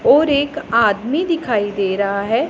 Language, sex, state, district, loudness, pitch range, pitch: Hindi, female, Punjab, Pathankot, -17 LUFS, 205-310 Hz, 230 Hz